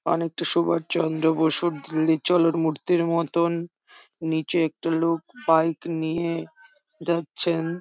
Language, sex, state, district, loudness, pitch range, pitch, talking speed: Bengali, female, West Bengal, Jhargram, -22 LUFS, 160-170 Hz, 165 Hz, 100 wpm